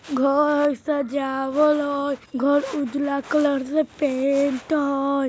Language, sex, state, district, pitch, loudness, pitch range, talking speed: Bajjika, female, Bihar, Vaishali, 280 Hz, -22 LUFS, 275-290 Hz, 100 wpm